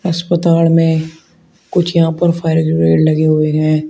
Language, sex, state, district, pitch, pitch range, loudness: Hindi, male, Uttar Pradesh, Shamli, 160 Hz, 155-170 Hz, -13 LUFS